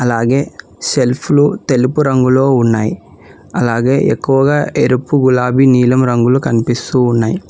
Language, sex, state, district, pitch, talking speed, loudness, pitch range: Telugu, male, Telangana, Hyderabad, 130 Hz, 105 wpm, -13 LUFS, 120-135 Hz